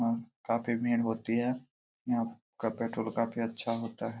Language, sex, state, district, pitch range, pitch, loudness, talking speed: Hindi, male, Jharkhand, Jamtara, 115-120 Hz, 115 Hz, -33 LUFS, 170 wpm